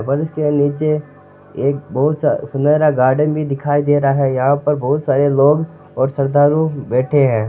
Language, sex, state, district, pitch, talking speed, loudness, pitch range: Marwari, male, Rajasthan, Nagaur, 145 Hz, 160 wpm, -16 LUFS, 140-150 Hz